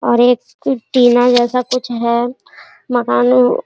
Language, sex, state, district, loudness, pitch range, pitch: Hindi, female, Bihar, Araria, -14 LUFS, 235-250 Hz, 245 Hz